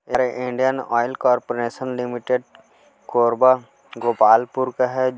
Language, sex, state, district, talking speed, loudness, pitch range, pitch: Hindi, male, Chhattisgarh, Korba, 105 wpm, -20 LUFS, 120-130 Hz, 125 Hz